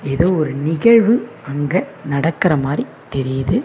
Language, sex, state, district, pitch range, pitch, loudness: Tamil, female, Tamil Nadu, Namakkal, 140-190 Hz, 160 Hz, -17 LUFS